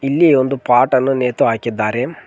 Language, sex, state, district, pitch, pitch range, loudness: Kannada, male, Karnataka, Koppal, 125 Hz, 120-135 Hz, -15 LUFS